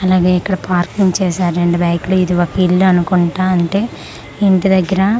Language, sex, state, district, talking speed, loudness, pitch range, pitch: Telugu, female, Andhra Pradesh, Manyam, 160 wpm, -14 LUFS, 175-190 Hz, 185 Hz